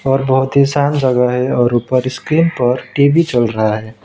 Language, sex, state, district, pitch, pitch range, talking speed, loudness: Hindi, male, West Bengal, Alipurduar, 130 Hz, 120-140 Hz, 205 wpm, -14 LUFS